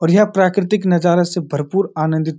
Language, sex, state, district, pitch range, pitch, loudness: Hindi, male, Uttarakhand, Uttarkashi, 160-195 Hz, 175 Hz, -16 LUFS